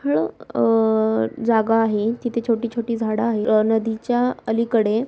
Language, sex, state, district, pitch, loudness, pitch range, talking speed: Marathi, female, Maharashtra, Sindhudurg, 225 Hz, -20 LUFS, 210-235 Hz, 165 wpm